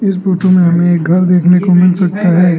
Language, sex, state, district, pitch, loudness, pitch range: Hindi, male, Arunachal Pradesh, Lower Dibang Valley, 180 Hz, -10 LUFS, 175-185 Hz